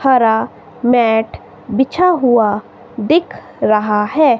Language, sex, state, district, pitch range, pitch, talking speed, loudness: Hindi, female, Himachal Pradesh, Shimla, 215-265 Hz, 240 Hz, 95 wpm, -14 LUFS